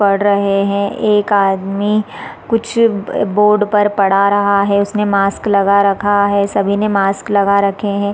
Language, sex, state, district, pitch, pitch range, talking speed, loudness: Hindi, female, Chhattisgarh, Raigarh, 200 Hz, 200-210 Hz, 170 wpm, -14 LUFS